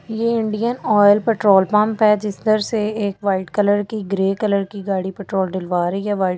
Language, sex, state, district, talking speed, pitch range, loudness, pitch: Hindi, female, Delhi, New Delhi, 215 wpm, 195-215 Hz, -18 LUFS, 205 Hz